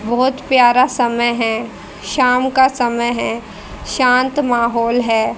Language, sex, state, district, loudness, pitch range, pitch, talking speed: Hindi, female, Haryana, Rohtak, -15 LUFS, 235-255 Hz, 240 Hz, 125 wpm